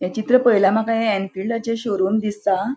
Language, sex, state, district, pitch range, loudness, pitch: Konkani, female, Goa, North and South Goa, 195-230 Hz, -19 LUFS, 220 Hz